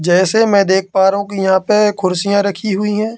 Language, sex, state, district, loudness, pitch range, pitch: Hindi, male, Madhya Pradesh, Katni, -14 LUFS, 190-210 Hz, 200 Hz